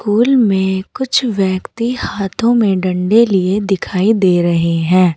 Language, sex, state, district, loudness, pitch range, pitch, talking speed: Hindi, female, Uttar Pradesh, Saharanpur, -14 LUFS, 185-230 Hz, 195 Hz, 130 wpm